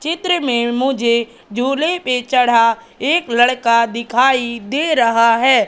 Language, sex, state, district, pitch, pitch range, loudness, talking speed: Hindi, female, Madhya Pradesh, Katni, 245 Hz, 235-270 Hz, -15 LUFS, 125 wpm